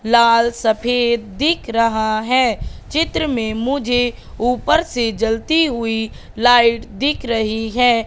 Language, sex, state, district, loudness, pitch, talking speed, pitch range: Hindi, female, Madhya Pradesh, Katni, -17 LUFS, 235 Hz, 120 wpm, 225-250 Hz